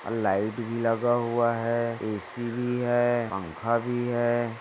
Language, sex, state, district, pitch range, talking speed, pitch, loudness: Hindi, male, Maharashtra, Dhule, 115-120 Hz, 155 wpm, 115 Hz, -27 LUFS